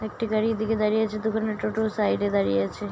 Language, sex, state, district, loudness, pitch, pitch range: Bengali, female, West Bengal, Purulia, -25 LUFS, 215 Hz, 205-220 Hz